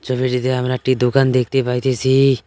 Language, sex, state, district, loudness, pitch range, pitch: Bengali, male, West Bengal, Cooch Behar, -17 LUFS, 125-130 Hz, 130 Hz